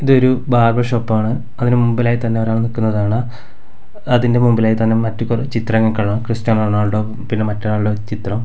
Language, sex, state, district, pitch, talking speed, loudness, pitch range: Malayalam, male, Kerala, Kasaragod, 115 Hz, 140 wpm, -16 LUFS, 110-120 Hz